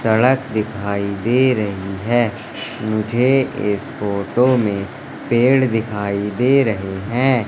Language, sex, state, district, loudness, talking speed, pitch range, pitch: Hindi, male, Madhya Pradesh, Katni, -18 LUFS, 110 wpm, 100-130 Hz, 110 Hz